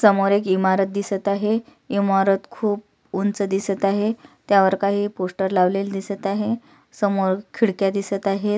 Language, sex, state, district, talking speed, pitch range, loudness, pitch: Marathi, female, Maharashtra, Sindhudurg, 140 wpm, 195-205 Hz, -21 LUFS, 200 Hz